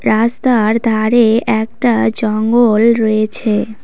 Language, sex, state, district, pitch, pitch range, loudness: Bengali, female, West Bengal, Cooch Behar, 225 Hz, 215-235 Hz, -13 LUFS